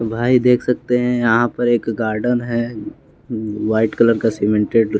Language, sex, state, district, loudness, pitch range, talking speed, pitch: Hindi, male, Bihar, West Champaran, -17 LUFS, 110-120 Hz, 180 wpm, 115 Hz